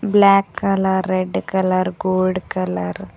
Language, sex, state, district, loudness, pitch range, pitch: Kannada, female, Karnataka, Koppal, -18 LUFS, 185-195 Hz, 185 Hz